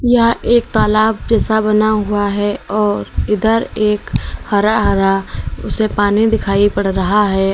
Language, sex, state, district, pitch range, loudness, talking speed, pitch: Hindi, female, Uttar Pradesh, Lalitpur, 200-220 Hz, -15 LUFS, 145 wpm, 210 Hz